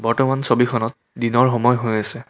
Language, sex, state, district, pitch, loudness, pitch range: Assamese, male, Assam, Kamrup Metropolitan, 120 Hz, -18 LUFS, 115-125 Hz